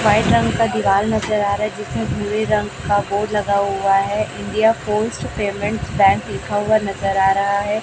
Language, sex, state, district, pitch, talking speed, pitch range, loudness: Hindi, male, Chhattisgarh, Raipur, 205 Hz, 200 wpm, 200-215 Hz, -18 LUFS